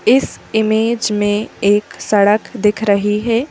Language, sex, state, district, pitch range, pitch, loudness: Hindi, female, Madhya Pradesh, Bhopal, 205-230 Hz, 215 Hz, -15 LUFS